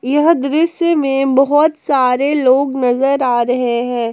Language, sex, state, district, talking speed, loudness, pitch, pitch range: Hindi, female, Jharkhand, Palamu, 145 wpm, -14 LUFS, 270 Hz, 250-295 Hz